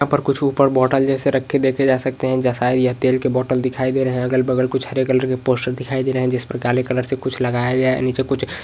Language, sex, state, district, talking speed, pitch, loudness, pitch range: Hindi, male, Uttarakhand, Uttarkashi, 290 wpm, 130 Hz, -19 LUFS, 125-130 Hz